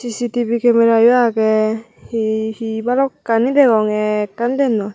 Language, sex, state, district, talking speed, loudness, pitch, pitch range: Chakma, female, Tripura, Unakoti, 120 wpm, -16 LUFS, 230 Hz, 220-240 Hz